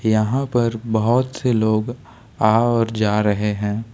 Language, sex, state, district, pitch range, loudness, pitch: Hindi, male, Jharkhand, Ranchi, 110-120 Hz, -19 LUFS, 115 Hz